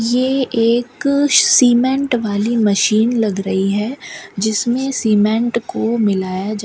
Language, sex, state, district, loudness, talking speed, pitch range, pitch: Hindi, female, Rajasthan, Bikaner, -15 LUFS, 125 wpm, 210-255 Hz, 230 Hz